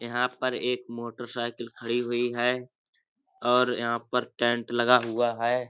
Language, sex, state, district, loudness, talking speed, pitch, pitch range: Hindi, male, Uttar Pradesh, Budaun, -27 LUFS, 145 wpm, 120 Hz, 120-125 Hz